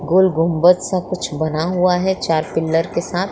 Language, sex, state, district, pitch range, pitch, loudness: Hindi, female, Bihar, Muzaffarpur, 160-185 Hz, 180 Hz, -17 LUFS